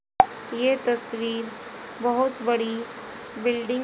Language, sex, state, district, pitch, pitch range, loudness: Hindi, female, Haryana, Rohtak, 235 Hz, 230-245 Hz, -25 LUFS